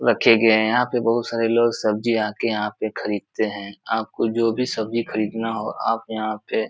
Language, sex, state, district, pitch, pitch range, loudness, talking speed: Hindi, male, Uttar Pradesh, Etah, 110 Hz, 110-115 Hz, -22 LUFS, 215 wpm